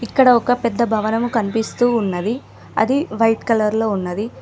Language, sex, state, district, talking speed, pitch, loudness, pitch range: Telugu, female, Telangana, Mahabubabad, 150 wpm, 225 Hz, -18 LUFS, 215-240 Hz